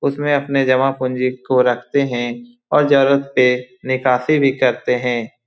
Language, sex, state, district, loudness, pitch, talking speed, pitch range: Hindi, male, Bihar, Lakhisarai, -17 LUFS, 130 Hz, 155 wpm, 125-140 Hz